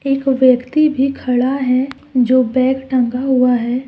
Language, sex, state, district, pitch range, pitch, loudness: Hindi, female, Jharkhand, Deoghar, 250-270 Hz, 260 Hz, -15 LUFS